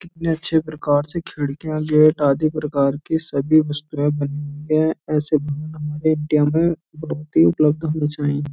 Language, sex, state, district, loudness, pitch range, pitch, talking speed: Hindi, male, Uttar Pradesh, Jyotiba Phule Nagar, -20 LUFS, 145-155 Hz, 150 Hz, 105 wpm